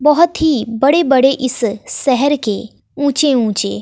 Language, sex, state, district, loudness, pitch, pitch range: Hindi, female, Bihar, West Champaran, -14 LUFS, 270 Hz, 230-290 Hz